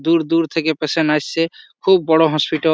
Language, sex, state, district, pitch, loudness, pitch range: Bengali, male, West Bengal, Malda, 160 Hz, -17 LUFS, 155-165 Hz